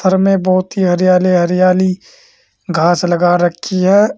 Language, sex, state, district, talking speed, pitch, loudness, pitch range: Hindi, male, Uttar Pradesh, Saharanpur, 145 wpm, 185 Hz, -13 LUFS, 175-195 Hz